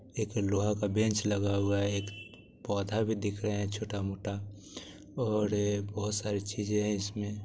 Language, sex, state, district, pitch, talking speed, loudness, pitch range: Maithili, male, Bihar, Supaul, 105 Hz, 170 wpm, -32 LUFS, 100-105 Hz